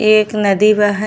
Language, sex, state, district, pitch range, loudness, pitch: Bhojpuri, female, Uttar Pradesh, Ghazipur, 205-215 Hz, -13 LUFS, 215 Hz